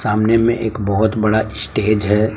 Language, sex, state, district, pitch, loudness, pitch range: Hindi, male, Jharkhand, Palamu, 110 Hz, -17 LUFS, 105-110 Hz